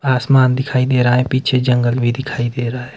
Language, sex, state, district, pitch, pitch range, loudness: Hindi, male, Himachal Pradesh, Shimla, 125 Hz, 120-130 Hz, -16 LUFS